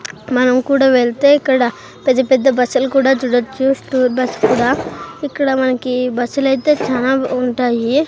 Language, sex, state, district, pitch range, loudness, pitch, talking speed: Telugu, female, Andhra Pradesh, Sri Satya Sai, 250-270 Hz, -15 LUFS, 260 Hz, 125 wpm